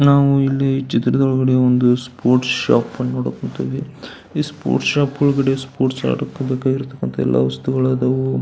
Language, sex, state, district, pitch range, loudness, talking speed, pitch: Kannada, male, Karnataka, Belgaum, 125-135 Hz, -18 LUFS, 120 wpm, 130 Hz